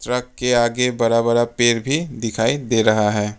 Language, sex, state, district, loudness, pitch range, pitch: Hindi, male, Arunachal Pradesh, Papum Pare, -18 LUFS, 115-125 Hz, 120 Hz